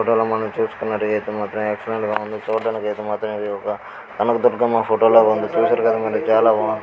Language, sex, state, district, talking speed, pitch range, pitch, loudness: Telugu, male, Karnataka, Belgaum, 210 wpm, 105-115 Hz, 110 Hz, -19 LUFS